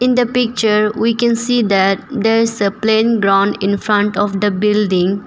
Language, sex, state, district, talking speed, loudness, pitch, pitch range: English, female, Arunachal Pradesh, Papum Pare, 195 wpm, -15 LUFS, 210 Hz, 200-230 Hz